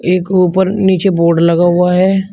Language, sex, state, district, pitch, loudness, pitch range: Hindi, male, Uttar Pradesh, Shamli, 180 Hz, -11 LUFS, 175-190 Hz